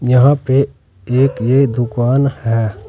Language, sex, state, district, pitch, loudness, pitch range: Hindi, male, Uttar Pradesh, Saharanpur, 125 Hz, -15 LUFS, 115-135 Hz